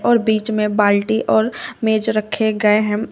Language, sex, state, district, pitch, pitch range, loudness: Hindi, female, Uttar Pradesh, Shamli, 220 Hz, 210-220 Hz, -17 LUFS